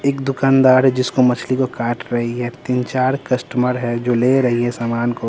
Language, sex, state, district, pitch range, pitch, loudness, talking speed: Hindi, male, Bihar, Patna, 120-130 Hz, 125 Hz, -17 LUFS, 215 wpm